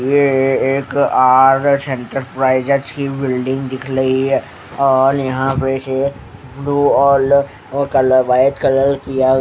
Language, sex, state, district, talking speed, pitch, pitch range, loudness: Hindi, male, Haryana, Charkhi Dadri, 115 wpm, 135 Hz, 130-140 Hz, -15 LUFS